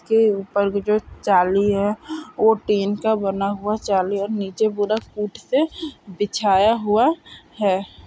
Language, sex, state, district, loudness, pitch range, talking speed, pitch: Hindi, female, Maharashtra, Sindhudurg, -20 LUFS, 200-220 Hz, 150 wpm, 210 Hz